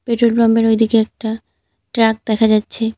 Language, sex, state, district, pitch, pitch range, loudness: Bengali, female, West Bengal, Cooch Behar, 225 Hz, 220-230 Hz, -15 LUFS